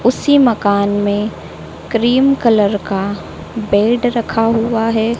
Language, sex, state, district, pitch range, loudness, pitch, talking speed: Hindi, female, Madhya Pradesh, Dhar, 205-235 Hz, -14 LUFS, 225 Hz, 115 wpm